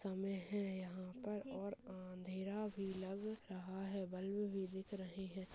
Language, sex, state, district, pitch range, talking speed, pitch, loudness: Hindi, female, Chhattisgarh, Balrampur, 190-200 Hz, 150 wpm, 195 Hz, -46 LUFS